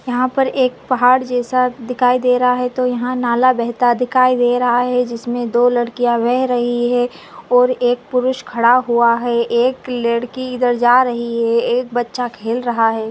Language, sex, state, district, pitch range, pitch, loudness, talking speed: Hindi, female, Maharashtra, Nagpur, 240-250 Hz, 245 Hz, -16 LUFS, 185 wpm